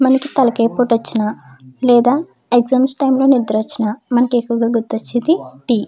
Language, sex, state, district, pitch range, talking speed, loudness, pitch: Telugu, female, Andhra Pradesh, Chittoor, 225-260 Hz, 165 wpm, -15 LUFS, 240 Hz